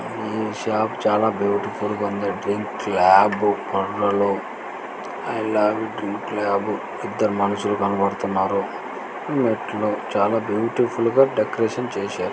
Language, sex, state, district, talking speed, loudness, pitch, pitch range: Telugu, male, Andhra Pradesh, Srikakulam, 105 wpm, -22 LUFS, 105 Hz, 100-110 Hz